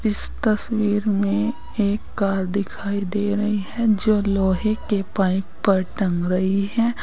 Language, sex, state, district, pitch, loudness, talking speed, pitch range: Hindi, female, Uttar Pradesh, Saharanpur, 205 Hz, -21 LUFS, 145 wpm, 195-215 Hz